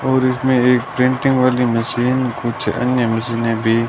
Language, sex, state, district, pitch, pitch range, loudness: Hindi, male, Rajasthan, Bikaner, 125 Hz, 115-130 Hz, -17 LUFS